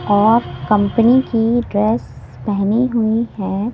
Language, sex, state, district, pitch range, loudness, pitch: Hindi, female, Delhi, New Delhi, 200-230 Hz, -16 LUFS, 220 Hz